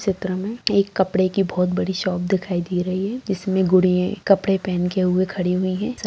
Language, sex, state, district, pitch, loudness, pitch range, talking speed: Hindi, female, Bihar, Darbhanga, 185 Hz, -21 LUFS, 185-195 Hz, 225 wpm